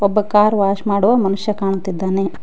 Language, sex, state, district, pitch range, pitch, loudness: Kannada, female, Karnataka, Koppal, 195-210 Hz, 200 Hz, -17 LUFS